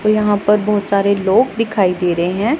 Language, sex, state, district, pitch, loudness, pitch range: Hindi, female, Punjab, Pathankot, 205 Hz, -15 LUFS, 195-215 Hz